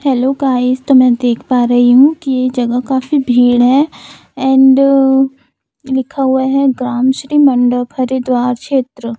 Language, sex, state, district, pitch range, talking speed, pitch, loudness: Hindi, female, Chhattisgarh, Raipur, 245-270 Hz, 155 wpm, 260 Hz, -12 LUFS